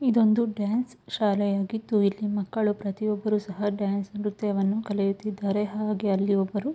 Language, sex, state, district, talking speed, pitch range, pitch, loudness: Kannada, female, Karnataka, Mysore, 115 wpm, 200-215 Hz, 205 Hz, -27 LUFS